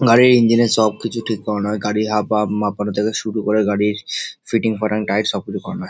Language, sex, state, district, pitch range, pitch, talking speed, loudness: Bengali, male, West Bengal, Dakshin Dinajpur, 105-115 Hz, 110 Hz, 225 wpm, -18 LUFS